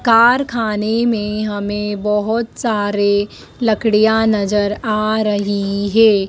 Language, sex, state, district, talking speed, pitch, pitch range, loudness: Hindi, female, Madhya Pradesh, Dhar, 95 wpm, 215 Hz, 205-225 Hz, -16 LUFS